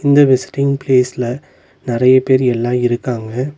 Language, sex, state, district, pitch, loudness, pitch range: Tamil, male, Tamil Nadu, Nilgiris, 130 Hz, -15 LUFS, 125-140 Hz